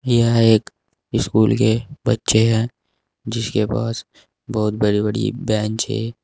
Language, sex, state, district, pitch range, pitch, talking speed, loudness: Hindi, male, Uttar Pradesh, Saharanpur, 110-120 Hz, 115 Hz, 125 wpm, -19 LUFS